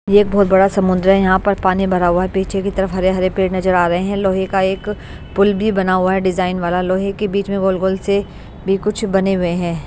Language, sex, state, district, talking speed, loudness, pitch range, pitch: Hindi, female, Bihar, Patna, 255 wpm, -16 LUFS, 185-200 Hz, 190 Hz